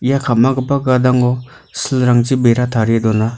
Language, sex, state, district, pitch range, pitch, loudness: Garo, male, Meghalaya, North Garo Hills, 120-130 Hz, 125 Hz, -14 LUFS